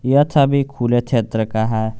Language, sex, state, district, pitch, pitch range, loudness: Hindi, male, Jharkhand, Garhwa, 120 Hz, 110-140 Hz, -17 LUFS